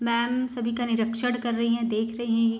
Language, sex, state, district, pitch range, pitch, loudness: Hindi, female, Bihar, East Champaran, 230-240 Hz, 235 Hz, -26 LUFS